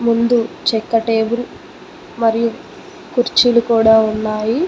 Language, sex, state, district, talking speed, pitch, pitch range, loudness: Telugu, female, Telangana, Mahabubabad, 90 wpm, 230 Hz, 225-240 Hz, -15 LUFS